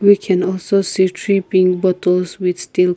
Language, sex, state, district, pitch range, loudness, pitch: English, female, Nagaland, Kohima, 180-195 Hz, -16 LUFS, 185 Hz